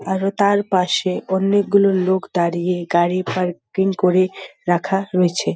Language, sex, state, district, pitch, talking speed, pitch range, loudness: Bengali, female, West Bengal, Dakshin Dinajpur, 185 Hz, 130 wpm, 180-195 Hz, -18 LUFS